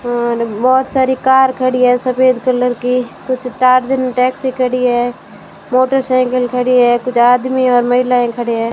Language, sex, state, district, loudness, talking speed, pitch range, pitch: Hindi, female, Rajasthan, Bikaner, -13 LUFS, 150 wpm, 245-255 Hz, 250 Hz